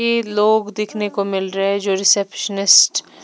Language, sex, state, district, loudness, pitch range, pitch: Hindi, female, Punjab, Pathankot, -16 LUFS, 195-210 Hz, 200 Hz